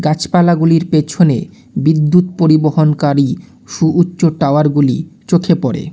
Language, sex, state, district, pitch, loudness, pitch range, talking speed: Bengali, male, West Bengal, Alipurduar, 160 Hz, -13 LUFS, 150-175 Hz, 80 wpm